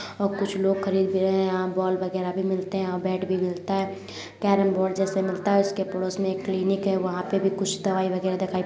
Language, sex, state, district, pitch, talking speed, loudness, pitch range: Hindi, female, Uttar Pradesh, Jalaun, 190 Hz, 255 wpm, -25 LUFS, 185-195 Hz